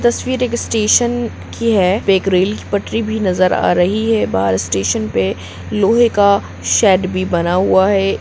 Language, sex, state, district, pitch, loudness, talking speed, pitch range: Hindi, female, Bihar, Gopalganj, 195 Hz, -15 LUFS, 170 wpm, 175-220 Hz